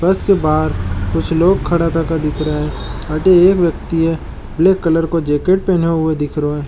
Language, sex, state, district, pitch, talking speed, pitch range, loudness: Marwari, male, Rajasthan, Nagaur, 165 Hz, 190 wpm, 150-175 Hz, -15 LUFS